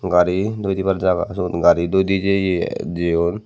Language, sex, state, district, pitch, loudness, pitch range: Chakma, male, Tripura, Dhalai, 90 Hz, -19 LUFS, 85-95 Hz